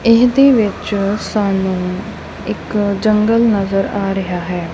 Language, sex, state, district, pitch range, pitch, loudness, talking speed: Punjabi, female, Punjab, Kapurthala, 195-220 Hz, 200 Hz, -15 LUFS, 115 wpm